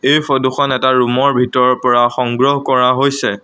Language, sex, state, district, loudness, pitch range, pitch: Assamese, male, Assam, Sonitpur, -13 LUFS, 125-140 Hz, 130 Hz